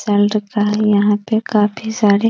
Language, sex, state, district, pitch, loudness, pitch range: Hindi, female, Bihar, East Champaran, 210 Hz, -16 LUFS, 205-220 Hz